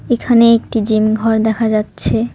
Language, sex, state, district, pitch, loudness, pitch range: Bengali, female, West Bengal, Cooch Behar, 225 Hz, -14 LUFS, 220-230 Hz